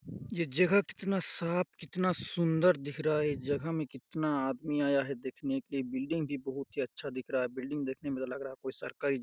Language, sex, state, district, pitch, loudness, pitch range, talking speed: Hindi, male, Chhattisgarh, Raigarh, 145 Hz, -33 LUFS, 135-165 Hz, 220 wpm